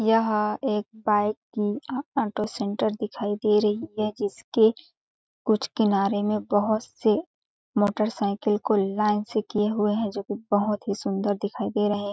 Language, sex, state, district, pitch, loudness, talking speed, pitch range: Hindi, female, Chhattisgarh, Balrampur, 210 Hz, -25 LUFS, 160 wpm, 205-220 Hz